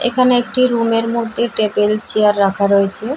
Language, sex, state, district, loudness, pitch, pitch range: Bengali, female, West Bengal, Jalpaiguri, -15 LUFS, 225 Hz, 210-240 Hz